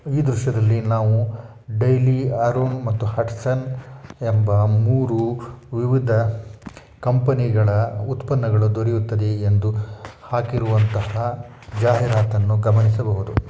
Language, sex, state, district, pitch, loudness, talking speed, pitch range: Kannada, male, Karnataka, Shimoga, 115 Hz, -20 LUFS, 80 wpm, 110-125 Hz